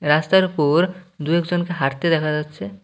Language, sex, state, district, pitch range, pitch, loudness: Bengali, male, West Bengal, Cooch Behar, 150-175 Hz, 160 Hz, -19 LUFS